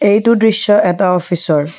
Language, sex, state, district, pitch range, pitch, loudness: Assamese, female, Assam, Kamrup Metropolitan, 175-215 Hz, 200 Hz, -12 LUFS